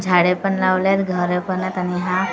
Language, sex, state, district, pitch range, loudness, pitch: Marathi, female, Maharashtra, Gondia, 180-185 Hz, -19 LUFS, 185 Hz